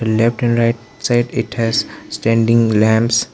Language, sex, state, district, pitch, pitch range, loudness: English, male, Arunachal Pradesh, Lower Dibang Valley, 115 Hz, 115-120 Hz, -16 LUFS